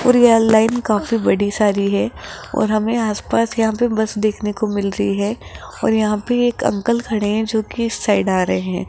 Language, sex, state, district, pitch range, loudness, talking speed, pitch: Hindi, female, Rajasthan, Jaipur, 205-230 Hz, -18 LUFS, 215 wpm, 215 Hz